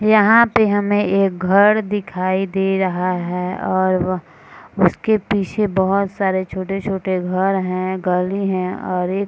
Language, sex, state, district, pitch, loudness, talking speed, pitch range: Hindi, female, Bihar, Madhepura, 190 Hz, -18 LUFS, 150 wpm, 185-200 Hz